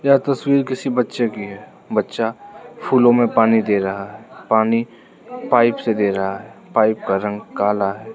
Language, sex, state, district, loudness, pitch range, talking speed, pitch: Hindi, male, Arunachal Pradesh, Lower Dibang Valley, -18 LUFS, 105-125 Hz, 175 wpm, 110 Hz